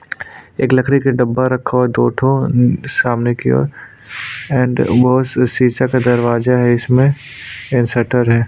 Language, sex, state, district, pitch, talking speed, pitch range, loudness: Hindi, male, Chhattisgarh, Sukma, 125 Hz, 150 wpm, 120-130 Hz, -14 LUFS